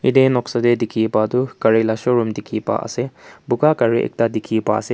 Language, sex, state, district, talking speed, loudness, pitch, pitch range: Nagamese, male, Nagaland, Kohima, 220 wpm, -18 LUFS, 115 Hz, 110-125 Hz